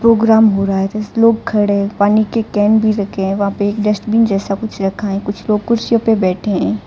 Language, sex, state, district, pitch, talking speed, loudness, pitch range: Hindi, female, Gujarat, Valsad, 210 Hz, 245 wpm, -15 LUFS, 200-220 Hz